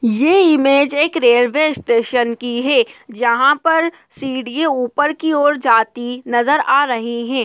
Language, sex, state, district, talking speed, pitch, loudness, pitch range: Hindi, male, Bihar, Muzaffarpur, 145 wpm, 270 Hz, -15 LUFS, 240-300 Hz